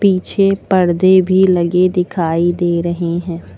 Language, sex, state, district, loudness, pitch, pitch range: Hindi, female, Uttar Pradesh, Lucknow, -14 LUFS, 180 Hz, 170-185 Hz